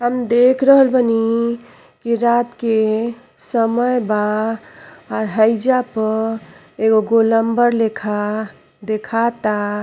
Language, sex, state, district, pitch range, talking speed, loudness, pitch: Bhojpuri, female, Uttar Pradesh, Ghazipur, 220-240 Hz, 90 wpm, -17 LUFS, 225 Hz